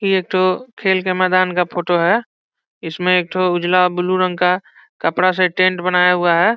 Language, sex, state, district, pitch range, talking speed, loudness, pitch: Hindi, male, Bihar, Saran, 180-185 Hz, 220 wpm, -16 LUFS, 180 Hz